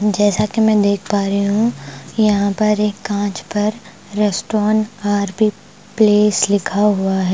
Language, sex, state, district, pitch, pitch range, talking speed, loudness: Hindi, female, Bihar, Patna, 205 Hz, 200-210 Hz, 155 wpm, -17 LUFS